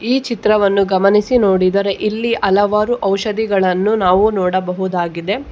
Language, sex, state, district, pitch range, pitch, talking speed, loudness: Kannada, female, Karnataka, Bangalore, 190-215 Hz, 200 Hz, 100 wpm, -15 LUFS